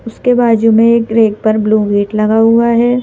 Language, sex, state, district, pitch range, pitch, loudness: Hindi, female, Madhya Pradesh, Bhopal, 215-235 Hz, 225 Hz, -11 LUFS